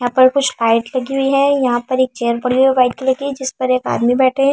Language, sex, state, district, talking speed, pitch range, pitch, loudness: Hindi, female, Delhi, New Delhi, 290 wpm, 250-270 Hz, 255 Hz, -15 LUFS